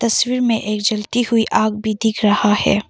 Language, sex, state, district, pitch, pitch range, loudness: Hindi, female, Arunachal Pradesh, Papum Pare, 215 Hz, 210-230 Hz, -17 LUFS